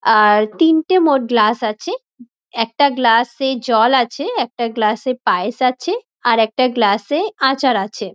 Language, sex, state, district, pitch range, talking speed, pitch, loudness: Bengali, female, West Bengal, Dakshin Dinajpur, 220-270 Hz, 155 wpm, 245 Hz, -16 LUFS